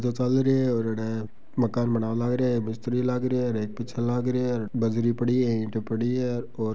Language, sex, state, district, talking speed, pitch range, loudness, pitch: Marwari, male, Rajasthan, Churu, 205 wpm, 115-125 Hz, -26 LUFS, 120 Hz